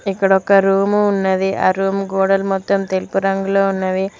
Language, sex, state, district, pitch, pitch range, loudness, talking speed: Telugu, female, Telangana, Mahabubabad, 195 Hz, 190-195 Hz, -16 LUFS, 145 wpm